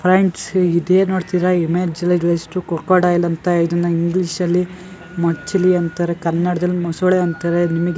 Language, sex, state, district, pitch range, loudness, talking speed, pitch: Kannada, male, Karnataka, Gulbarga, 170-180 Hz, -17 LUFS, 120 wpm, 175 Hz